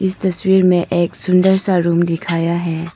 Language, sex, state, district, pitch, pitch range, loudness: Hindi, female, Arunachal Pradesh, Papum Pare, 175 Hz, 170-190 Hz, -15 LUFS